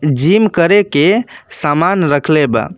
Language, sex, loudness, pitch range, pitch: Bhojpuri, male, -12 LUFS, 150-205 Hz, 170 Hz